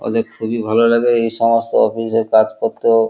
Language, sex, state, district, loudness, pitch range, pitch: Bengali, male, West Bengal, Kolkata, -16 LUFS, 110-115 Hz, 115 Hz